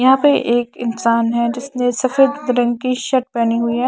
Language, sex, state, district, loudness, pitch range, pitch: Hindi, female, Punjab, Kapurthala, -17 LUFS, 235-260 Hz, 245 Hz